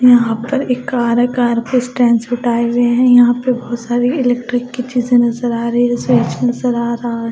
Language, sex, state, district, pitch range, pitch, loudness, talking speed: Hindi, female, Odisha, Malkangiri, 235-245 Hz, 245 Hz, -15 LUFS, 215 wpm